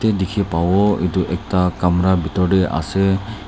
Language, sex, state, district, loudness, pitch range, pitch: Nagamese, male, Nagaland, Dimapur, -18 LUFS, 90-95 Hz, 95 Hz